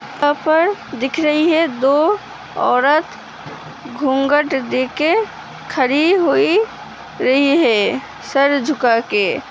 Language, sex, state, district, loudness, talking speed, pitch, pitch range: Hindi, female, Uttar Pradesh, Hamirpur, -16 LUFS, 100 wpm, 295 Hz, 270-325 Hz